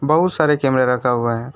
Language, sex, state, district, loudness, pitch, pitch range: Hindi, male, West Bengal, Alipurduar, -17 LUFS, 130 Hz, 125-150 Hz